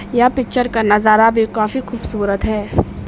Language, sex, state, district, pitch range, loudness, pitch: Hindi, female, Arunachal Pradesh, Papum Pare, 215-245 Hz, -16 LUFS, 225 Hz